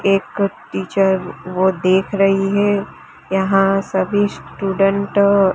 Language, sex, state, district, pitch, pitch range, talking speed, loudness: Hindi, female, Gujarat, Gandhinagar, 195 Hz, 190-200 Hz, 110 wpm, -17 LUFS